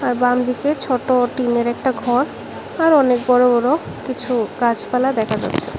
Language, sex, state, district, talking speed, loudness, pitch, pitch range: Bengali, female, Tripura, West Tripura, 145 wpm, -18 LUFS, 250 Hz, 240-260 Hz